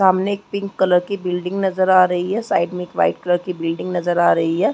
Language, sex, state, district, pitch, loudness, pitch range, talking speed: Hindi, female, Chhattisgarh, Balrampur, 180 Hz, -19 LUFS, 175-190 Hz, 255 wpm